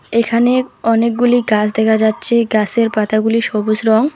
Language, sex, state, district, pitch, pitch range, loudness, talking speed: Bengali, female, West Bengal, Alipurduar, 230 Hz, 215-235 Hz, -14 LUFS, 130 wpm